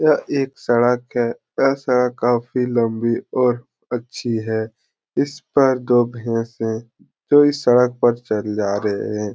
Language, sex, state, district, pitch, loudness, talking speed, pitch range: Hindi, male, Bihar, Jahanabad, 120 Hz, -19 LUFS, 150 wpm, 115-125 Hz